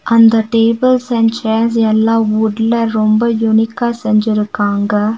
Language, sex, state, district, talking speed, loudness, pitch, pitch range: Tamil, female, Tamil Nadu, Nilgiris, 105 wpm, -13 LUFS, 225 Hz, 215-230 Hz